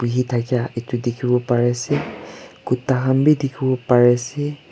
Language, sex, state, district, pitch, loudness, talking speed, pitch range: Nagamese, male, Nagaland, Kohima, 125 Hz, -19 LUFS, 140 wpm, 120-135 Hz